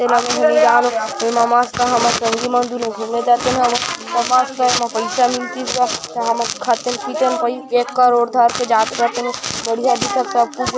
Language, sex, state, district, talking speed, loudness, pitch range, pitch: Hindi, female, Chhattisgarh, Kabirdham, 160 wpm, -17 LUFS, 235-250 Hz, 240 Hz